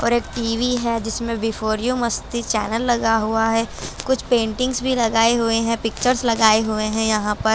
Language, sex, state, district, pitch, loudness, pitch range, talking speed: Hindi, female, Bihar, Patna, 230 Hz, -20 LUFS, 225-240 Hz, 205 wpm